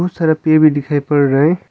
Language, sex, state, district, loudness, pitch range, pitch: Hindi, male, Arunachal Pradesh, Longding, -14 LUFS, 145-160 Hz, 155 Hz